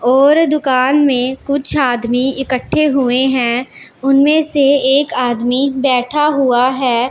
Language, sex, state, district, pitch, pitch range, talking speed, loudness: Hindi, female, Punjab, Pathankot, 265 Hz, 250-280 Hz, 125 wpm, -13 LUFS